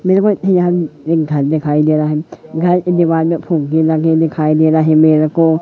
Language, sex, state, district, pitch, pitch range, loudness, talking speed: Hindi, female, Madhya Pradesh, Katni, 160 Hz, 155-170 Hz, -13 LUFS, 225 wpm